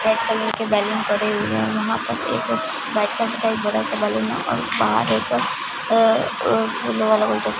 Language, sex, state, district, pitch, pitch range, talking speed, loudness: Hindi, female, Punjab, Fazilka, 215 Hz, 205-225 Hz, 180 wpm, -20 LUFS